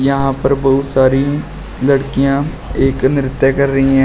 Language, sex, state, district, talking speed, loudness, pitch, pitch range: Hindi, male, Uttar Pradesh, Shamli, 150 wpm, -14 LUFS, 135 Hz, 135-140 Hz